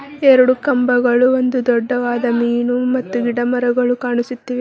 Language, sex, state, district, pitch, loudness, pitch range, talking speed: Kannada, female, Karnataka, Bidar, 250 Hz, -16 LUFS, 240-255 Hz, 105 wpm